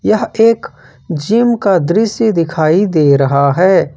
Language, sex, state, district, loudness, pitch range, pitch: Hindi, male, Jharkhand, Ranchi, -12 LUFS, 160-225 Hz, 190 Hz